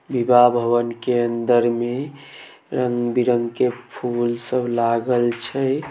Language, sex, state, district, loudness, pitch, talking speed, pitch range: Maithili, male, Bihar, Samastipur, -20 LUFS, 120 Hz, 110 wpm, 120-125 Hz